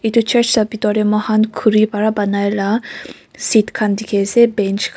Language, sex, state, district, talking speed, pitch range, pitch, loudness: Nagamese, female, Nagaland, Kohima, 195 wpm, 205-220 Hz, 215 Hz, -16 LUFS